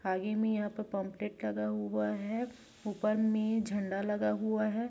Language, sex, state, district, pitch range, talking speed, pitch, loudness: Hindi, female, Chhattisgarh, Raigarh, 190-215 Hz, 170 wpm, 210 Hz, -34 LUFS